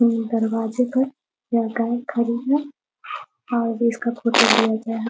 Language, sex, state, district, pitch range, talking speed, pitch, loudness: Hindi, female, Bihar, Muzaffarpur, 230-250 Hz, 155 wpm, 235 Hz, -21 LUFS